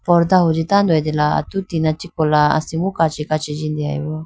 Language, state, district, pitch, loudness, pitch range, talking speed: Idu Mishmi, Arunachal Pradesh, Lower Dibang Valley, 155 Hz, -18 LUFS, 155-170 Hz, 185 wpm